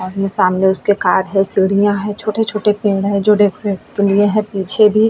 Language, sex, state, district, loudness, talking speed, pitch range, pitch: Hindi, female, Uttar Pradesh, Etah, -15 LUFS, 200 wpm, 195-210 Hz, 200 Hz